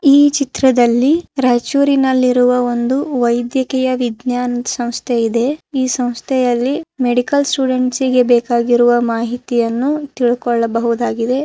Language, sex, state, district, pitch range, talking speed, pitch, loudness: Kannada, female, Karnataka, Raichur, 240-265 Hz, 85 wpm, 250 Hz, -15 LUFS